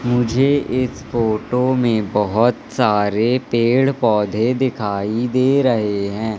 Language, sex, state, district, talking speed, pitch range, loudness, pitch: Hindi, male, Madhya Pradesh, Katni, 115 wpm, 105-130 Hz, -18 LUFS, 120 Hz